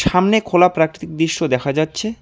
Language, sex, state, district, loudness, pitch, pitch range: Bengali, male, West Bengal, Alipurduar, -17 LUFS, 165 Hz, 160-190 Hz